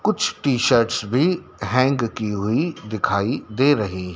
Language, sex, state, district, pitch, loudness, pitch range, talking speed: Hindi, male, Madhya Pradesh, Dhar, 115 Hz, -21 LUFS, 105-135 Hz, 145 wpm